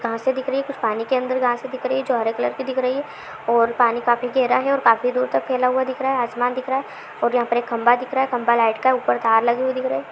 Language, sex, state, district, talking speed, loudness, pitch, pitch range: Hindi, female, Bihar, Supaul, 325 wpm, -20 LUFS, 245 Hz, 235-260 Hz